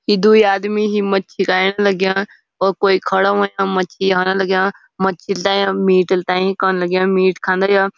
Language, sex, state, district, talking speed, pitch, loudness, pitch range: Garhwali, female, Uttarakhand, Uttarkashi, 180 wpm, 195 Hz, -16 LUFS, 185-200 Hz